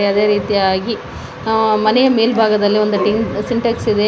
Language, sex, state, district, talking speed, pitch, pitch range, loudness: Kannada, female, Karnataka, Koppal, 105 wpm, 215 Hz, 205-225 Hz, -15 LUFS